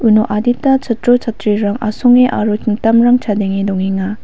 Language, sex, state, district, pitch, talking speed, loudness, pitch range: Garo, female, Meghalaya, West Garo Hills, 215 Hz, 125 wpm, -13 LUFS, 210-245 Hz